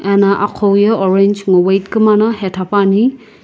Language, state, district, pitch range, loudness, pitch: Sumi, Nagaland, Kohima, 195-215 Hz, -12 LUFS, 200 Hz